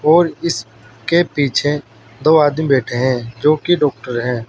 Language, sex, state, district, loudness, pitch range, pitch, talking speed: Hindi, male, Uttar Pradesh, Saharanpur, -16 LUFS, 120-155 Hz, 140 Hz, 135 wpm